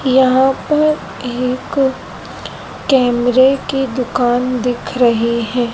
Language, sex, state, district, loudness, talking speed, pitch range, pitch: Hindi, female, Madhya Pradesh, Dhar, -15 LUFS, 95 wpm, 245-265 Hz, 255 Hz